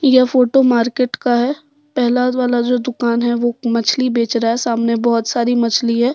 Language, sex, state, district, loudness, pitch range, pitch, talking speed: Hindi, female, Jharkhand, Deoghar, -16 LUFS, 235-255 Hz, 240 Hz, 195 wpm